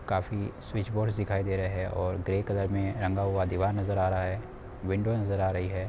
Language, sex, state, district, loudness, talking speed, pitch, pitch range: Hindi, male, Bihar, Samastipur, -30 LUFS, 235 wpm, 95 Hz, 95-105 Hz